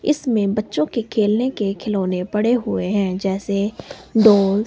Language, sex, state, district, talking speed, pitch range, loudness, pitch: Hindi, female, Himachal Pradesh, Shimla, 155 wpm, 195-220 Hz, -19 LUFS, 205 Hz